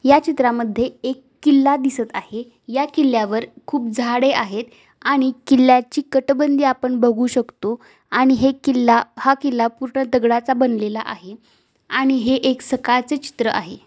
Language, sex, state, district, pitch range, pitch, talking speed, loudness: Marathi, female, Maharashtra, Aurangabad, 235-270 Hz, 255 Hz, 145 wpm, -18 LUFS